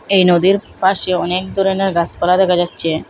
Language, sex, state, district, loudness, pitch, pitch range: Bengali, female, Assam, Hailakandi, -15 LUFS, 185 Hz, 175-195 Hz